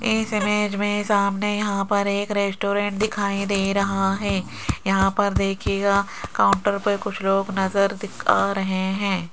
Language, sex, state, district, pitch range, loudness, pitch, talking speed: Hindi, female, Rajasthan, Jaipur, 195-205 Hz, -22 LUFS, 200 Hz, 155 wpm